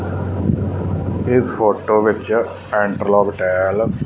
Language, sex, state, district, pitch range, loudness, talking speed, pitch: Punjabi, male, Punjab, Fazilka, 95-105 Hz, -18 LUFS, 90 wpm, 100 Hz